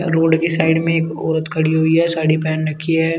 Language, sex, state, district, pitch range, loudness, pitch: Hindi, male, Uttar Pradesh, Shamli, 160-165 Hz, -17 LUFS, 160 Hz